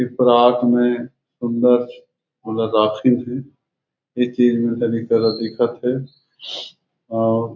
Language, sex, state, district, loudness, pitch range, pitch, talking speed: Chhattisgarhi, male, Chhattisgarh, Raigarh, -18 LUFS, 115-125 Hz, 120 Hz, 85 wpm